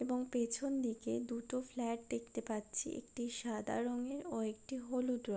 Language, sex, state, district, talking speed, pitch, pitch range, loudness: Bengali, female, West Bengal, Jalpaiguri, 165 wpm, 240 Hz, 220-255 Hz, -40 LUFS